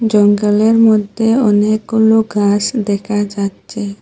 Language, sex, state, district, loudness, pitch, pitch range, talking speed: Bengali, female, Assam, Hailakandi, -13 LUFS, 210 Hz, 205-220 Hz, 90 wpm